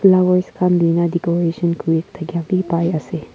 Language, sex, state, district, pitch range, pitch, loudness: Nagamese, female, Nagaland, Kohima, 170-180 Hz, 170 Hz, -18 LUFS